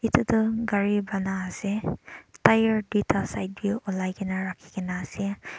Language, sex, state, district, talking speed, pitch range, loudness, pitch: Nagamese, male, Nagaland, Dimapur, 140 wpm, 185-215 Hz, -26 LUFS, 200 Hz